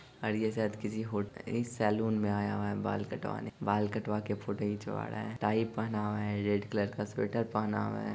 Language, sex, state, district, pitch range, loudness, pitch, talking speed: Hindi, male, Bihar, Sitamarhi, 105-110 Hz, -34 LUFS, 105 Hz, 230 wpm